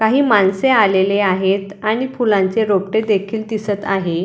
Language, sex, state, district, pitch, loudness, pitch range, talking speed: Marathi, female, Maharashtra, Dhule, 205 Hz, -16 LUFS, 195-220 Hz, 125 wpm